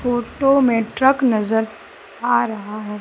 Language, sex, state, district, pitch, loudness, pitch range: Hindi, female, Madhya Pradesh, Umaria, 230 Hz, -18 LUFS, 215-260 Hz